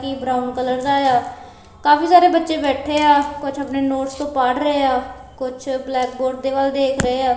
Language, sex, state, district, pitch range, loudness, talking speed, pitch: Punjabi, female, Punjab, Kapurthala, 255-285 Hz, -18 LUFS, 210 wpm, 270 Hz